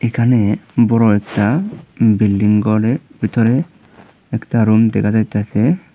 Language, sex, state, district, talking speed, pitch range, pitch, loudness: Bengali, male, Tripura, Unakoti, 100 wpm, 105-120 Hz, 110 Hz, -15 LUFS